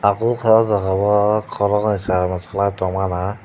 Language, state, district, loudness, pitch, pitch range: Kokborok, Tripura, Dhalai, -18 LUFS, 100 Hz, 95-105 Hz